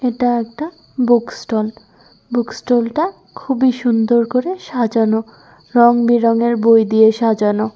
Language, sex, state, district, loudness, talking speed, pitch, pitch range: Bengali, female, West Bengal, Kolkata, -16 LUFS, 100 wpm, 235 Hz, 225-245 Hz